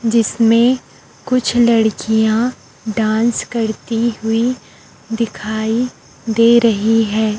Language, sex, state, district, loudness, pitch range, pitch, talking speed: Hindi, female, Chhattisgarh, Raipur, -16 LUFS, 220-235 Hz, 225 Hz, 80 wpm